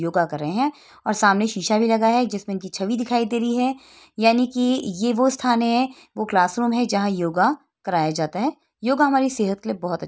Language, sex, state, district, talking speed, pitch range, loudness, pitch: Hindi, female, Uttar Pradesh, Etah, 225 wpm, 195-250 Hz, -21 LUFS, 230 Hz